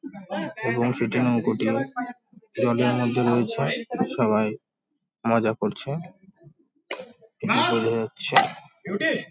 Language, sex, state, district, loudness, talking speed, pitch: Bengali, male, West Bengal, North 24 Parganas, -24 LUFS, 65 wpm, 125 Hz